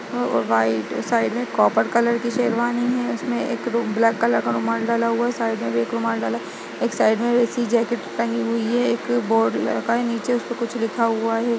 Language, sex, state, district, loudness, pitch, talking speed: Hindi, female, Uttar Pradesh, Etah, -21 LUFS, 225 Hz, 240 wpm